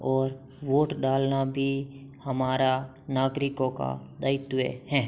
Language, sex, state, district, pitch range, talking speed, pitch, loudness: Hindi, male, Uttar Pradesh, Hamirpur, 130-135 Hz, 105 wpm, 135 Hz, -28 LUFS